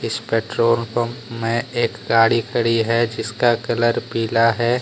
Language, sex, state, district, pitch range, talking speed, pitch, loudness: Hindi, male, Jharkhand, Deoghar, 115-120 Hz, 135 wpm, 115 Hz, -19 LUFS